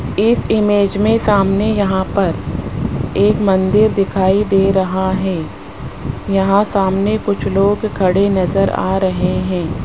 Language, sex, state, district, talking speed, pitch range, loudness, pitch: Hindi, male, Rajasthan, Jaipur, 130 wpm, 190-205 Hz, -15 LUFS, 195 Hz